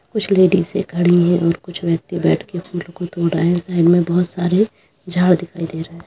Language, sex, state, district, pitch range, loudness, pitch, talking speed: Hindi, female, Uttar Pradesh, Budaun, 170-180 Hz, -17 LUFS, 175 Hz, 225 wpm